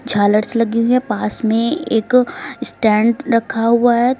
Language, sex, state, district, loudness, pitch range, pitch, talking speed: Hindi, female, Uttar Pradesh, Lucknow, -16 LUFS, 220-250 Hz, 230 Hz, 155 wpm